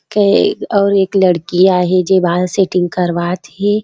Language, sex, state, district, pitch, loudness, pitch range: Chhattisgarhi, female, Chhattisgarh, Raigarh, 185 Hz, -13 LUFS, 180-200 Hz